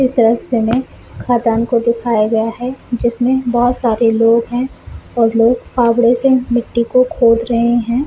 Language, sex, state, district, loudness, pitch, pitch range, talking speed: Hindi, female, Chhattisgarh, Balrampur, -14 LUFS, 240 Hz, 230-245 Hz, 165 wpm